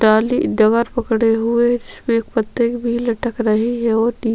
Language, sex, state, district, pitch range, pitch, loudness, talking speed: Hindi, female, Chhattisgarh, Sukma, 225-235 Hz, 230 Hz, -17 LUFS, 180 wpm